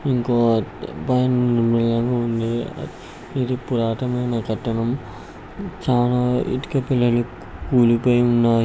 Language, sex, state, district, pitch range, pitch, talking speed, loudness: Telugu, male, Andhra Pradesh, Guntur, 115-125 Hz, 120 Hz, 60 wpm, -20 LUFS